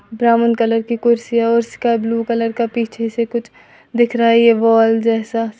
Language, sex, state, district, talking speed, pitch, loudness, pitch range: Hindi, female, Uttar Pradesh, Lalitpur, 205 wpm, 230 Hz, -16 LUFS, 230-235 Hz